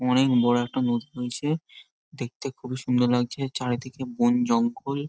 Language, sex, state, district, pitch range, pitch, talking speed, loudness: Bengali, male, West Bengal, Jhargram, 125-145 Hz, 130 Hz, 130 wpm, -26 LUFS